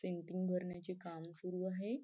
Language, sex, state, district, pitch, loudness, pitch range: Marathi, female, Maharashtra, Nagpur, 180 Hz, -43 LUFS, 175-185 Hz